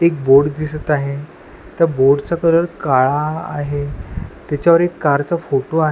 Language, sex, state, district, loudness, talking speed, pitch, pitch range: Marathi, male, Maharashtra, Washim, -16 LUFS, 150 wpm, 145 Hz, 140-165 Hz